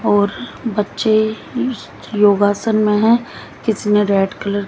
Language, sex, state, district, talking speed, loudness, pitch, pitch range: Hindi, female, Haryana, Jhajjar, 130 wpm, -17 LUFS, 210 Hz, 205-220 Hz